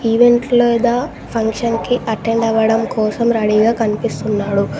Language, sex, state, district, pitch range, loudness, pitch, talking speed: Telugu, female, Telangana, Mahabubabad, 215-235 Hz, -16 LUFS, 225 Hz, 115 wpm